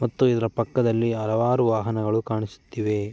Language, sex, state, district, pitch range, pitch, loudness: Kannada, male, Karnataka, Mysore, 110-115 Hz, 115 Hz, -24 LUFS